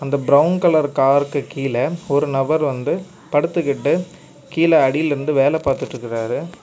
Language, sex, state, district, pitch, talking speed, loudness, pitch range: Tamil, male, Tamil Nadu, Kanyakumari, 145 Hz, 120 wpm, -18 LUFS, 135-160 Hz